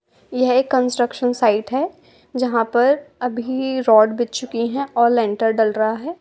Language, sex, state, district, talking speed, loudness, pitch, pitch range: Hindi, female, Uttar Pradesh, Budaun, 155 wpm, -19 LUFS, 245 Hz, 230-260 Hz